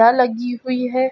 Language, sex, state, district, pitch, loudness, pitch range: Hindi, female, Chhattisgarh, Bilaspur, 250 Hz, -19 LUFS, 245-255 Hz